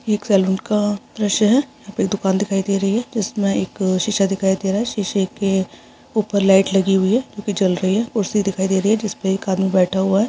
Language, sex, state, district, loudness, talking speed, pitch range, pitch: Hindi, female, Chhattisgarh, Jashpur, -19 LUFS, 255 wpm, 190-210 Hz, 195 Hz